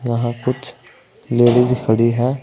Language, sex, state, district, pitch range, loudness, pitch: Hindi, male, Uttar Pradesh, Saharanpur, 120-125 Hz, -17 LUFS, 120 Hz